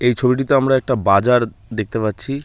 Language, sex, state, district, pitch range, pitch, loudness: Bengali, male, West Bengal, Malda, 110-130 Hz, 125 Hz, -17 LUFS